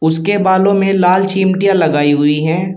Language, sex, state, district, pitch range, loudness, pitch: Hindi, male, Uttar Pradesh, Shamli, 160-195 Hz, -12 LUFS, 185 Hz